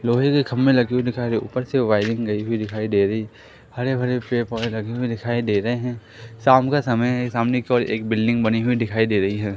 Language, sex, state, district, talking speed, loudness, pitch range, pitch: Hindi, male, Madhya Pradesh, Katni, 245 wpm, -21 LUFS, 110-125 Hz, 120 Hz